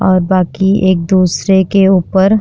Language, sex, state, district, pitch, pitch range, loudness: Bhojpuri, female, Uttar Pradesh, Deoria, 190 Hz, 185-195 Hz, -11 LUFS